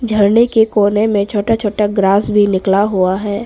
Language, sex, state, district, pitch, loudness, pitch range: Hindi, female, Arunachal Pradesh, Papum Pare, 205 Hz, -13 LUFS, 200-215 Hz